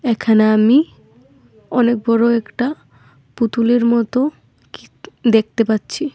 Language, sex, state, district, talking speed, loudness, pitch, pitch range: Bengali, female, Tripura, Dhalai, 90 wpm, -16 LUFS, 235 Hz, 225-250 Hz